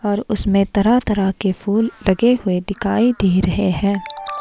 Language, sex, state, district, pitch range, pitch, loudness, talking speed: Hindi, female, Himachal Pradesh, Shimla, 190-215 Hz, 200 Hz, -17 LUFS, 150 wpm